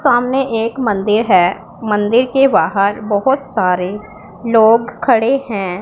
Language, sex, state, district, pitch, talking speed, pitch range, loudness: Hindi, female, Punjab, Pathankot, 215 Hz, 125 wpm, 200-245 Hz, -14 LUFS